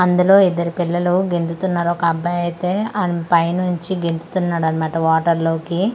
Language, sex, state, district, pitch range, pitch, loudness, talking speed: Telugu, female, Andhra Pradesh, Manyam, 170-180 Hz, 175 Hz, -18 LUFS, 130 wpm